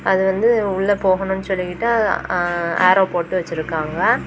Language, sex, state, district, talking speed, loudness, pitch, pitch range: Tamil, female, Tamil Nadu, Kanyakumari, 110 wpm, -18 LUFS, 185 Hz, 175-195 Hz